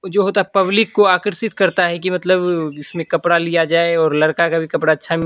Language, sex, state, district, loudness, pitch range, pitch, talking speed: Hindi, female, Bihar, Katihar, -16 LUFS, 165-190 Hz, 170 Hz, 230 wpm